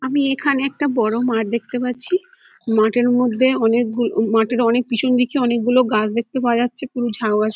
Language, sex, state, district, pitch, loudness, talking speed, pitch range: Bengali, female, West Bengal, Dakshin Dinajpur, 245 Hz, -18 LUFS, 175 wpm, 230-255 Hz